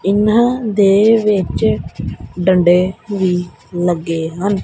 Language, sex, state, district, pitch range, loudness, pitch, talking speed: Punjabi, male, Punjab, Kapurthala, 175-210 Hz, -15 LUFS, 190 Hz, 90 wpm